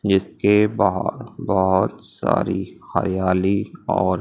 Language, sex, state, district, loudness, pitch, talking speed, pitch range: Hindi, male, Madhya Pradesh, Umaria, -21 LUFS, 100 Hz, 85 wpm, 95-105 Hz